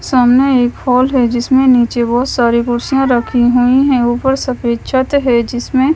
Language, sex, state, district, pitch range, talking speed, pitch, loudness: Hindi, female, Punjab, Kapurthala, 240-265 Hz, 170 wpm, 250 Hz, -12 LUFS